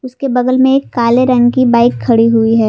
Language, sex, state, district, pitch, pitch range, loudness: Hindi, female, Jharkhand, Palamu, 245 Hz, 235-255 Hz, -11 LUFS